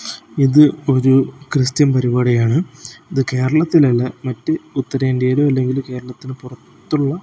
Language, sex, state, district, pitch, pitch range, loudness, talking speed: Malayalam, male, Kerala, Kozhikode, 135 Hz, 125-145 Hz, -16 LUFS, 90 wpm